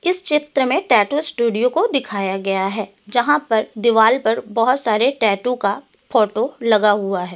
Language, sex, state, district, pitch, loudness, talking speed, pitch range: Hindi, female, Delhi, New Delhi, 225 Hz, -17 LUFS, 180 wpm, 205-255 Hz